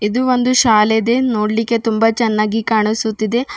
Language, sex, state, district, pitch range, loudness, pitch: Kannada, female, Karnataka, Bidar, 215-240 Hz, -15 LUFS, 225 Hz